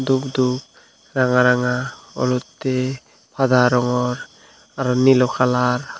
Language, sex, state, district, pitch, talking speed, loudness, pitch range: Chakma, male, Tripura, Dhalai, 125 Hz, 100 wpm, -19 LUFS, 125-130 Hz